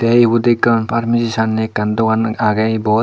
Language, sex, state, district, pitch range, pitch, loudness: Chakma, male, Tripura, Dhalai, 110-115 Hz, 110 Hz, -15 LUFS